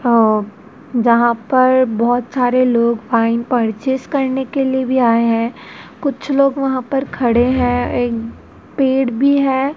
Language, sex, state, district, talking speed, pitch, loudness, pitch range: Hindi, female, Madhya Pradesh, Dhar, 145 wpm, 250 Hz, -16 LUFS, 235-265 Hz